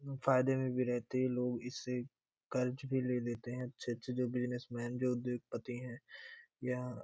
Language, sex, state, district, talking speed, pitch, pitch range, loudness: Hindi, male, Bihar, Gopalganj, 180 wpm, 125 Hz, 125-130 Hz, -38 LUFS